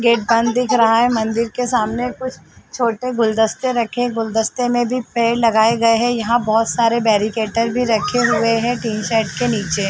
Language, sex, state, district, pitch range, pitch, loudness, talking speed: Hindi, female, Uttar Pradesh, Varanasi, 225-245 Hz, 230 Hz, -17 LUFS, 190 wpm